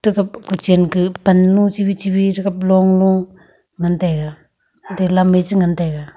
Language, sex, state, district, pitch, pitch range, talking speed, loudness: Wancho, female, Arunachal Pradesh, Longding, 185 Hz, 180-195 Hz, 175 wpm, -15 LUFS